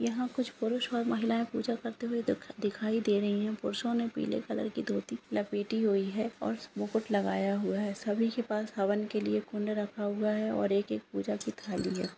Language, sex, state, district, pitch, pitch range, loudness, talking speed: Hindi, female, Andhra Pradesh, Anantapur, 215 Hz, 205-235 Hz, -33 LUFS, 185 wpm